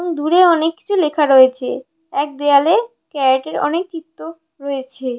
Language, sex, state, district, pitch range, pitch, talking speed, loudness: Bengali, female, West Bengal, North 24 Parganas, 275-335 Hz, 310 Hz, 150 wpm, -16 LUFS